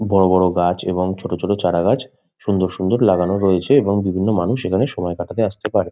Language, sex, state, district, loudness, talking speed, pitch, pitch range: Bengali, male, West Bengal, Kolkata, -18 LUFS, 195 wpm, 95 Hz, 90-100 Hz